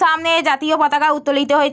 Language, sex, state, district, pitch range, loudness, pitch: Bengali, female, West Bengal, Jalpaiguri, 285-315 Hz, -16 LUFS, 295 Hz